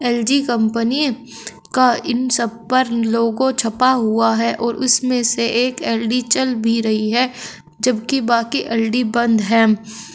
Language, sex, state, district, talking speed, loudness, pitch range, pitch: Hindi, female, Uttar Pradesh, Shamli, 140 wpm, -17 LUFS, 225-250 Hz, 235 Hz